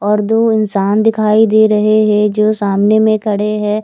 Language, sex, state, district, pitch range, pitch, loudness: Hindi, female, Chandigarh, Chandigarh, 210-215 Hz, 215 Hz, -12 LUFS